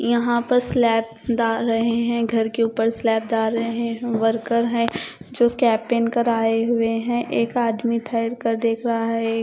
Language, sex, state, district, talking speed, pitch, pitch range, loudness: Hindi, female, Odisha, Khordha, 180 wpm, 230 Hz, 225-235 Hz, -21 LUFS